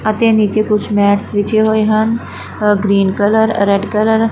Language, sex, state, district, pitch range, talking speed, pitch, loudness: Punjabi, female, Punjab, Fazilka, 205-220 Hz, 195 wpm, 215 Hz, -13 LUFS